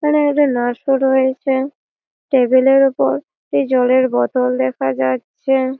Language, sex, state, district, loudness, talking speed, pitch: Bengali, female, West Bengal, Malda, -16 LUFS, 135 wpm, 260 Hz